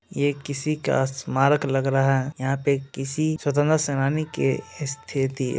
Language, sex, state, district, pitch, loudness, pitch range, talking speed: Hindi, male, Bihar, Muzaffarpur, 140 Hz, -24 LUFS, 135-145 Hz, 150 wpm